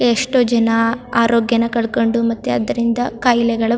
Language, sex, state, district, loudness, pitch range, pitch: Kannada, female, Karnataka, Chamarajanagar, -16 LUFS, 230-235 Hz, 235 Hz